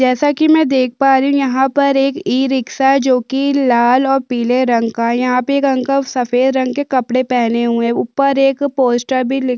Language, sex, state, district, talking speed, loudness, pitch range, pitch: Hindi, female, Chhattisgarh, Sukma, 220 wpm, -14 LUFS, 250-275 Hz, 265 Hz